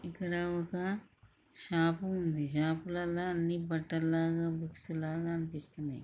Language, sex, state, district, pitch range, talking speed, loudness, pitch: Telugu, male, Andhra Pradesh, Chittoor, 160-175 Hz, 120 wpm, -35 LUFS, 165 Hz